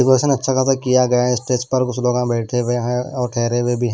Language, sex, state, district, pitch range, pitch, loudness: Hindi, male, Bihar, Kaimur, 120-130 Hz, 125 Hz, -18 LUFS